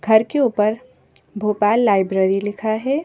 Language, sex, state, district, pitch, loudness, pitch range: Hindi, female, Madhya Pradesh, Bhopal, 215 Hz, -18 LUFS, 205-235 Hz